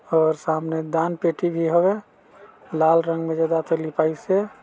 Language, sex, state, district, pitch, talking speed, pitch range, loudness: Chhattisgarhi, male, Chhattisgarh, Balrampur, 165 Hz, 155 wpm, 160-170 Hz, -22 LUFS